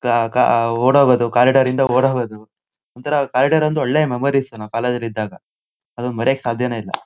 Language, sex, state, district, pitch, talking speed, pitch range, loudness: Kannada, male, Karnataka, Shimoga, 125 Hz, 180 wpm, 115-135 Hz, -17 LUFS